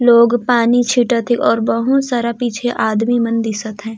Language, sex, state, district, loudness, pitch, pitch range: Sadri, female, Chhattisgarh, Jashpur, -15 LUFS, 235 Hz, 230-245 Hz